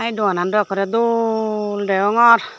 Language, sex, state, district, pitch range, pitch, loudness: Chakma, female, Tripura, Dhalai, 200-230 Hz, 210 Hz, -18 LUFS